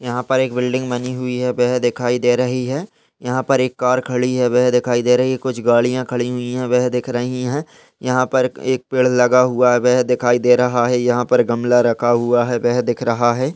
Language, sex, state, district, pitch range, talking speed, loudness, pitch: Hindi, male, Uttar Pradesh, Muzaffarnagar, 120-125 Hz, 240 wpm, -17 LUFS, 125 Hz